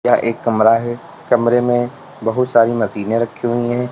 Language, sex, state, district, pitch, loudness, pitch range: Hindi, male, Uttar Pradesh, Lalitpur, 120 Hz, -17 LUFS, 115-125 Hz